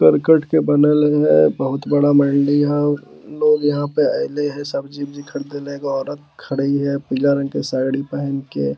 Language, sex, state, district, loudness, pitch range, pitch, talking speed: Magahi, male, Bihar, Lakhisarai, -18 LUFS, 140-145 Hz, 145 Hz, 170 wpm